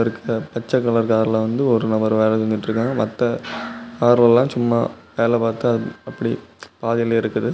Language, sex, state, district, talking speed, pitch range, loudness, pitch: Tamil, male, Tamil Nadu, Kanyakumari, 160 wpm, 110-120 Hz, -19 LUFS, 115 Hz